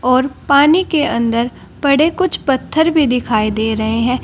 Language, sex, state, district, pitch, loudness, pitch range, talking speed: Hindi, female, Uttar Pradesh, Saharanpur, 265 Hz, -15 LUFS, 235-310 Hz, 170 wpm